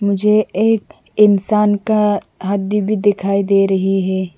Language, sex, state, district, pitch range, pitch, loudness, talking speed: Hindi, female, Mizoram, Aizawl, 195-210 Hz, 200 Hz, -15 LUFS, 135 wpm